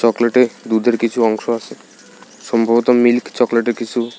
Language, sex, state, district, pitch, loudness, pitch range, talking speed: Bengali, male, Tripura, South Tripura, 120 Hz, -16 LUFS, 115-120 Hz, 130 wpm